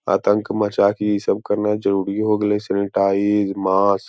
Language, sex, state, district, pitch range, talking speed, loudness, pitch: Hindi, male, Bihar, Lakhisarai, 100-105 Hz, 175 wpm, -19 LUFS, 100 Hz